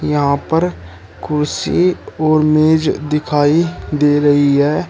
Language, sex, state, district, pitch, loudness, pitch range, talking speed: Hindi, male, Uttar Pradesh, Shamli, 150 Hz, -15 LUFS, 145-155 Hz, 110 wpm